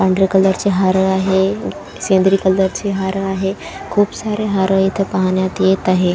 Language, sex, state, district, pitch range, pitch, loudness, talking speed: Marathi, female, Maharashtra, Chandrapur, 190-195 Hz, 190 Hz, -16 LUFS, 165 wpm